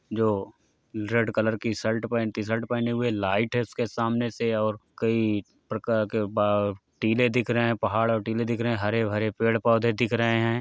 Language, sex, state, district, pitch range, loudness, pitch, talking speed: Hindi, male, Bihar, Gopalganj, 110-115 Hz, -26 LUFS, 115 Hz, 190 wpm